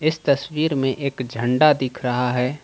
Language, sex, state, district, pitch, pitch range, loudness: Hindi, male, Jharkhand, Ranchi, 135 Hz, 125-150 Hz, -21 LUFS